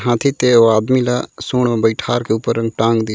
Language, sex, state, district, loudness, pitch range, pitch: Chhattisgarhi, male, Chhattisgarh, Raigarh, -16 LUFS, 110-125 Hz, 115 Hz